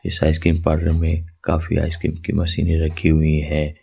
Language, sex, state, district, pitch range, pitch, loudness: Hindi, male, Jharkhand, Ranchi, 80-85 Hz, 80 Hz, -20 LUFS